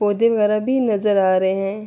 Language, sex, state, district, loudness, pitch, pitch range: Urdu, female, Andhra Pradesh, Anantapur, -18 LUFS, 210 Hz, 195-215 Hz